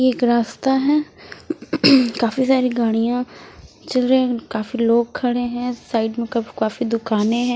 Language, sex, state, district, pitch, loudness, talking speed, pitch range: Hindi, female, Odisha, Sambalpur, 245 Hz, -19 LUFS, 145 wpm, 230-255 Hz